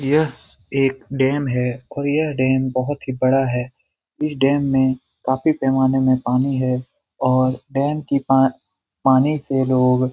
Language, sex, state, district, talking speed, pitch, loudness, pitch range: Hindi, male, Bihar, Lakhisarai, 165 wpm, 130 Hz, -19 LUFS, 130-140 Hz